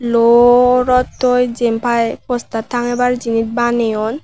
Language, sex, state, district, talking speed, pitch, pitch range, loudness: Chakma, female, Tripura, West Tripura, 115 wpm, 240 Hz, 230-250 Hz, -14 LUFS